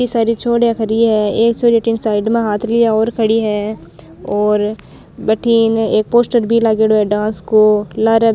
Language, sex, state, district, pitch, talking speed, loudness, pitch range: Rajasthani, female, Rajasthan, Nagaur, 220 Hz, 185 wpm, -14 LUFS, 210-230 Hz